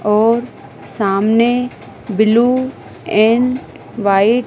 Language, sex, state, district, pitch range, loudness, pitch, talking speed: Hindi, female, Madhya Pradesh, Dhar, 210-245 Hz, -15 LUFS, 230 Hz, 80 wpm